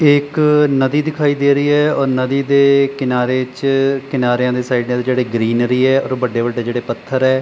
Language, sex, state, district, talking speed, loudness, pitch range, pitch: Punjabi, male, Punjab, Pathankot, 185 wpm, -15 LUFS, 125-140 Hz, 130 Hz